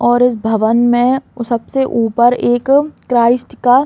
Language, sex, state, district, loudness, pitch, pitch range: Hindi, female, Uttar Pradesh, Muzaffarnagar, -14 LUFS, 240 Hz, 235-255 Hz